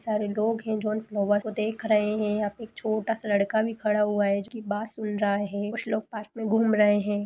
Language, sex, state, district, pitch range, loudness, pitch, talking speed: Hindi, female, Bihar, East Champaran, 205-220 Hz, -27 LUFS, 215 Hz, 250 wpm